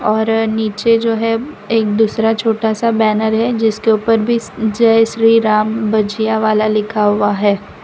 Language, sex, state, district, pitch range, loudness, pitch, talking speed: Hindi, female, Gujarat, Valsad, 215-225 Hz, -14 LUFS, 220 Hz, 160 wpm